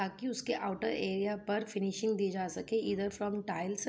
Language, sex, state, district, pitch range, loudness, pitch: Hindi, female, Jharkhand, Sahebganj, 195-220 Hz, -35 LUFS, 205 Hz